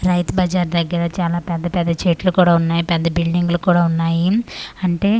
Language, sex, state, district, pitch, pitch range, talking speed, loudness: Telugu, female, Andhra Pradesh, Manyam, 175 Hz, 170-180 Hz, 160 wpm, -18 LUFS